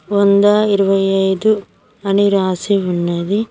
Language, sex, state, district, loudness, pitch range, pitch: Telugu, female, Telangana, Mahabubabad, -15 LUFS, 190-205 Hz, 195 Hz